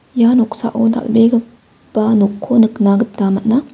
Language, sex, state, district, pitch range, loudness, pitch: Garo, female, Meghalaya, West Garo Hills, 215-235 Hz, -14 LUFS, 230 Hz